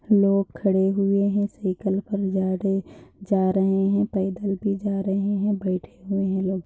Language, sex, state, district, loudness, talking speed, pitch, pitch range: Hindi, female, Maharashtra, Dhule, -23 LUFS, 180 wpm, 195 Hz, 190-200 Hz